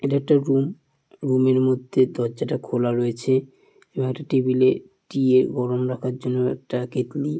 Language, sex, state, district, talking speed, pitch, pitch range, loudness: Bengali, male, West Bengal, Malda, 155 wpm, 130 Hz, 125-135 Hz, -22 LUFS